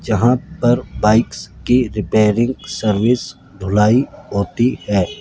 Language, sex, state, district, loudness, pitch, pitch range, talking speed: Hindi, male, Rajasthan, Jaipur, -16 LUFS, 110 Hz, 105-125 Hz, 105 wpm